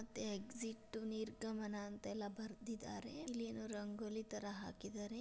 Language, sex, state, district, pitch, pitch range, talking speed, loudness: Kannada, female, Karnataka, Dharwad, 220 Hz, 210-225 Hz, 105 wpm, -48 LUFS